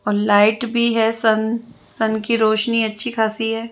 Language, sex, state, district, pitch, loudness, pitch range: Hindi, female, Chandigarh, Chandigarh, 225 Hz, -18 LUFS, 220-230 Hz